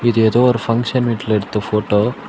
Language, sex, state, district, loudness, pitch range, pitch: Tamil, male, Tamil Nadu, Kanyakumari, -16 LUFS, 105-120 Hz, 115 Hz